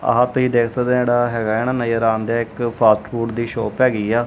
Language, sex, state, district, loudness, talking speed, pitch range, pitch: Punjabi, male, Punjab, Kapurthala, -18 LUFS, 240 wpm, 115-120 Hz, 115 Hz